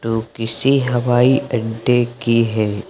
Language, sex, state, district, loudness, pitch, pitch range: Hindi, male, Uttar Pradesh, Lucknow, -17 LUFS, 115 Hz, 115-125 Hz